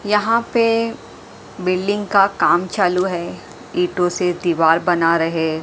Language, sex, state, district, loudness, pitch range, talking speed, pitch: Hindi, female, Maharashtra, Mumbai Suburban, -18 LUFS, 170-205 Hz, 130 wpm, 180 Hz